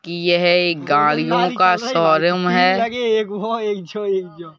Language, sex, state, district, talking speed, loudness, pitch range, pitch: Hindi, male, Madhya Pradesh, Bhopal, 90 wpm, -17 LUFS, 170-205 Hz, 180 Hz